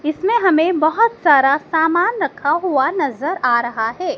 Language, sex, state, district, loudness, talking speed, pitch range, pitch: Hindi, female, Madhya Pradesh, Dhar, -16 LUFS, 155 wpm, 270-355 Hz, 315 Hz